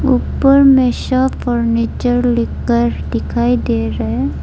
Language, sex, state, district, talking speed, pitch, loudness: Hindi, female, Arunachal Pradesh, Lower Dibang Valley, 120 wpm, 230 Hz, -15 LUFS